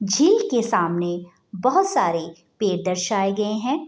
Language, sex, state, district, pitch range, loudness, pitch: Hindi, female, Bihar, Bhagalpur, 175-250 Hz, -21 LUFS, 200 Hz